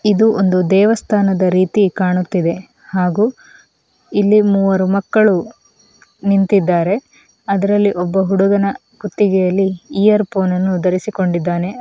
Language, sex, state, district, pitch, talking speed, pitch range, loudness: Kannada, female, Karnataka, Mysore, 195 Hz, 85 wpm, 185-205 Hz, -15 LUFS